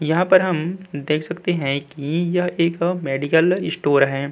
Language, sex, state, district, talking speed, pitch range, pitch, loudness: Hindi, male, Uttar Pradesh, Budaun, 165 wpm, 145-180 Hz, 170 Hz, -20 LUFS